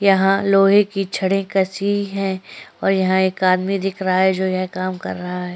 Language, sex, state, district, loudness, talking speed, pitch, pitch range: Hindi, female, Maharashtra, Chandrapur, -18 LUFS, 195 wpm, 190 Hz, 185-195 Hz